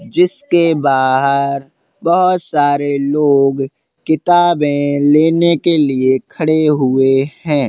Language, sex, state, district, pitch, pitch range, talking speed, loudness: Hindi, male, Uttar Pradesh, Hamirpur, 150 Hz, 140-170 Hz, 95 wpm, -13 LUFS